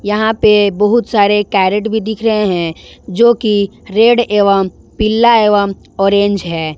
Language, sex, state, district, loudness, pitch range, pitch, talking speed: Hindi, female, Jharkhand, Ranchi, -12 LUFS, 200-220 Hz, 210 Hz, 160 wpm